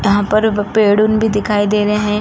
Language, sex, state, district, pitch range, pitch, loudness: Hindi, female, Uttar Pradesh, Jalaun, 205-215 Hz, 210 Hz, -14 LUFS